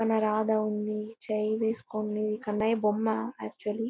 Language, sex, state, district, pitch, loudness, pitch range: Telugu, female, Andhra Pradesh, Anantapur, 215 Hz, -30 LUFS, 210-220 Hz